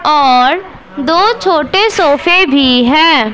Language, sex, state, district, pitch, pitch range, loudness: Hindi, female, Punjab, Pathankot, 310 Hz, 280-365 Hz, -9 LUFS